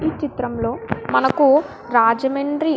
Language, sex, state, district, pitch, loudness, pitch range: Telugu, female, Andhra Pradesh, Guntur, 275 Hz, -19 LUFS, 240-295 Hz